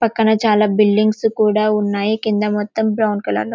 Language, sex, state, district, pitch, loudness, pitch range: Telugu, female, Telangana, Karimnagar, 215 Hz, -16 LUFS, 210-220 Hz